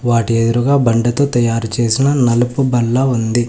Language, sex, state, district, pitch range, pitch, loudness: Telugu, male, Telangana, Hyderabad, 115-130 Hz, 120 Hz, -14 LUFS